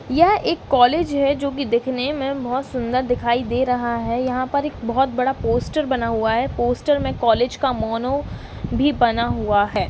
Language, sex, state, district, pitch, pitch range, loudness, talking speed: Hindi, female, Uttar Pradesh, Varanasi, 255 Hz, 235-275 Hz, -20 LUFS, 200 wpm